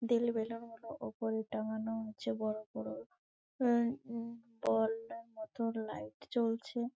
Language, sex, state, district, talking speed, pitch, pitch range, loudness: Bengali, female, West Bengal, Malda, 120 wpm, 225 Hz, 215-235 Hz, -38 LUFS